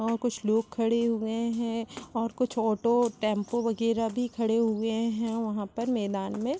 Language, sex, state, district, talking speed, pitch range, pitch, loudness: Hindi, female, Chhattisgarh, Raigarh, 175 wpm, 220-235 Hz, 230 Hz, -29 LUFS